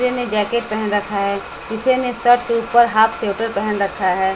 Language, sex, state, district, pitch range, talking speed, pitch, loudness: Hindi, female, Bihar, West Champaran, 200-240 Hz, 220 wpm, 220 Hz, -18 LUFS